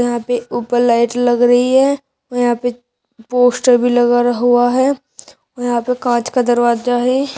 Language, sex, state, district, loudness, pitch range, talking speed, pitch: Hindi, female, Uttar Pradesh, Shamli, -15 LUFS, 240-250 Hz, 165 wpm, 245 Hz